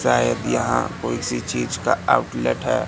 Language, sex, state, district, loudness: Hindi, male, Madhya Pradesh, Katni, -21 LUFS